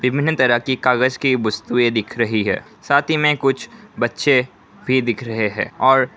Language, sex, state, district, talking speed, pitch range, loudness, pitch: Hindi, male, Assam, Kamrup Metropolitan, 175 wpm, 120-140 Hz, -18 LUFS, 130 Hz